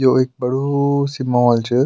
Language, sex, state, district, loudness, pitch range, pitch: Garhwali, male, Uttarakhand, Tehri Garhwal, -17 LUFS, 125-140 Hz, 130 Hz